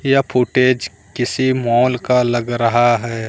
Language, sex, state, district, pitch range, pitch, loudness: Hindi, male, Bihar, Katihar, 120-130 Hz, 120 Hz, -16 LUFS